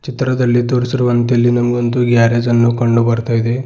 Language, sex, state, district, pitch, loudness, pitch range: Kannada, male, Karnataka, Bidar, 120 Hz, -14 LUFS, 120-125 Hz